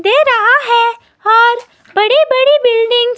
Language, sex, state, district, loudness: Hindi, female, Himachal Pradesh, Shimla, -10 LUFS